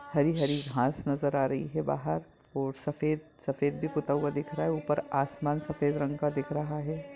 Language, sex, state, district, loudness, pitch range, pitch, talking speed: Hindi, male, Bihar, Madhepura, -31 LUFS, 140-150 Hz, 145 Hz, 200 wpm